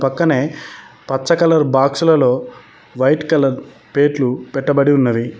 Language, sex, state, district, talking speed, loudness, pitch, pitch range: Telugu, male, Telangana, Mahabubabad, 100 wpm, -16 LUFS, 140 Hz, 135-155 Hz